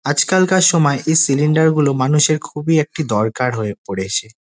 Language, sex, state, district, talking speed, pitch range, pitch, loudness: Bengali, male, West Bengal, Dakshin Dinajpur, 165 wpm, 115-160 Hz, 150 Hz, -16 LUFS